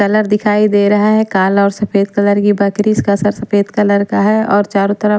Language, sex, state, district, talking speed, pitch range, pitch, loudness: Hindi, female, Punjab, Pathankot, 230 wpm, 200-210 Hz, 205 Hz, -13 LUFS